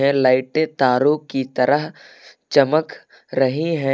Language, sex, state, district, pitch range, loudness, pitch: Hindi, male, Uttar Pradesh, Lucknow, 130-155 Hz, -19 LUFS, 140 Hz